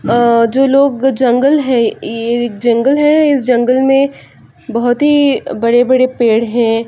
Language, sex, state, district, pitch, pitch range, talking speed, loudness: Hindi, female, Chhattisgarh, Raigarh, 250 Hz, 235-270 Hz, 140 wpm, -12 LUFS